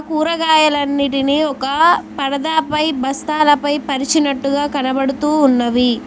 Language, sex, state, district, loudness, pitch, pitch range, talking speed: Telugu, female, Telangana, Mahabubabad, -15 LUFS, 290 Hz, 275-305 Hz, 70 wpm